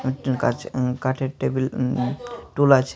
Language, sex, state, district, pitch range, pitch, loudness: Bengali, male, Tripura, Unakoti, 130-135 Hz, 130 Hz, -23 LUFS